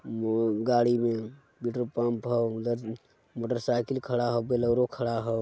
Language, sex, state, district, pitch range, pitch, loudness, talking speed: Magahi, male, Bihar, Jamui, 115-120 Hz, 120 Hz, -28 LUFS, 145 wpm